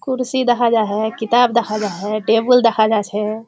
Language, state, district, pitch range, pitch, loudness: Surjapuri, Bihar, Kishanganj, 215-240 Hz, 225 Hz, -16 LUFS